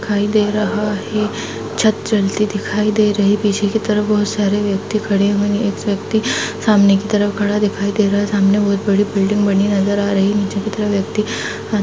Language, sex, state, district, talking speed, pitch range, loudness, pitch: Hindi, female, Uttar Pradesh, Jalaun, 215 wpm, 200-210 Hz, -16 LUFS, 205 Hz